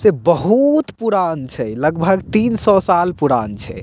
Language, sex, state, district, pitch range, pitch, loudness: Maithili, male, Bihar, Purnia, 150-215 Hz, 180 Hz, -16 LUFS